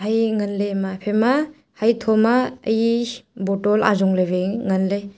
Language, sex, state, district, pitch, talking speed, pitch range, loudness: Wancho, female, Arunachal Pradesh, Longding, 215 Hz, 175 wpm, 195-230 Hz, -20 LUFS